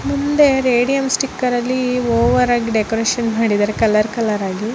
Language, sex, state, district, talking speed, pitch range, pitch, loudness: Kannada, male, Karnataka, Bellary, 150 wpm, 225-255 Hz, 240 Hz, -16 LUFS